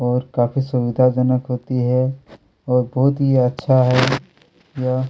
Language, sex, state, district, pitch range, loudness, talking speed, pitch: Hindi, male, Chhattisgarh, Kabirdham, 125-130 Hz, -18 LUFS, 140 wpm, 130 Hz